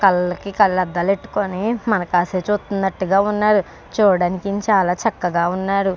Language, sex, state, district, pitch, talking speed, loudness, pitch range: Telugu, female, Andhra Pradesh, Krishna, 195 Hz, 130 wpm, -19 LUFS, 180-205 Hz